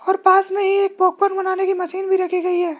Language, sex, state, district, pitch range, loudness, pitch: Hindi, male, Rajasthan, Jaipur, 365-385 Hz, -18 LUFS, 380 Hz